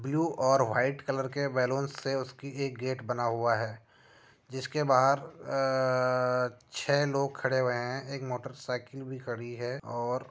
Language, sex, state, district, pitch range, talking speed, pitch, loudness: Hindi, male, Uttar Pradesh, Jyotiba Phule Nagar, 125-135 Hz, 165 wpm, 130 Hz, -30 LUFS